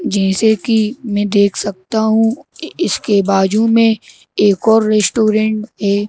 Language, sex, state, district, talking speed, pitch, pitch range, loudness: Hindi, male, Madhya Pradesh, Bhopal, 140 wpm, 215 Hz, 200-225 Hz, -14 LUFS